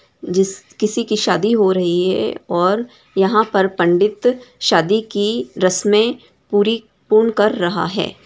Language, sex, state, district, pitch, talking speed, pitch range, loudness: Hindi, female, Bihar, Samastipur, 205 Hz, 140 wpm, 185-220 Hz, -17 LUFS